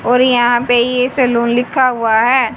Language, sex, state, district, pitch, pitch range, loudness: Hindi, female, Haryana, Charkhi Dadri, 245 Hz, 240-255 Hz, -13 LUFS